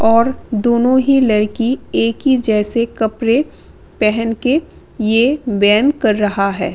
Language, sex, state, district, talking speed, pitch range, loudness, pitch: Hindi, female, Delhi, New Delhi, 135 wpm, 215-255 Hz, -15 LUFS, 230 Hz